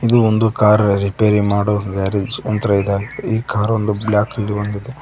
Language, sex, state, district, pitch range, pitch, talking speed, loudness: Kannada, male, Karnataka, Koppal, 100-110 Hz, 105 Hz, 145 wpm, -17 LUFS